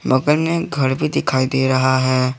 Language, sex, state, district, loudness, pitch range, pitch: Hindi, male, Jharkhand, Garhwa, -17 LUFS, 130-145 Hz, 130 Hz